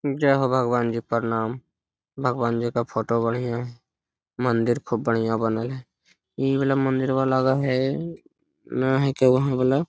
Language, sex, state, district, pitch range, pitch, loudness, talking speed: Hindi, male, Bihar, Lakhisarai, 115-135 Hz, 125 Hz, -23 LUFS, 160 wpm